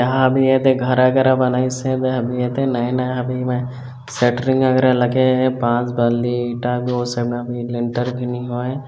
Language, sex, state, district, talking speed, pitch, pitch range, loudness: Chhattisgarhi, male, Chhattisgarh, Bilaspur, 155 wpm, 125 Hz, 120-130 Hz, -18 LUFS